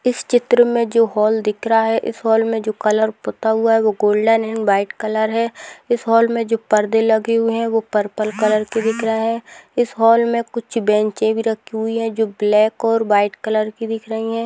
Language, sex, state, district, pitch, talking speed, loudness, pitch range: Hindi, female, Rajasthan, Churu, 225 Hz, 225 wpm, -17 LUFS, 215-230 Hz